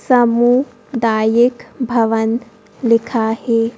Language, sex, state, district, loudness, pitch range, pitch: Hindi, female, Madhya Pradesh, Bhopal, -16 LUFS, 225-245 Hz, 230 Hz